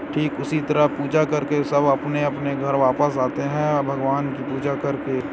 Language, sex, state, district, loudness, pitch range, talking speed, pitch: Chhattisgarhi, male, Chhattisgarh, Korba, -22 LUFS, 140-150 Hz, 180 wpm, 145 Hz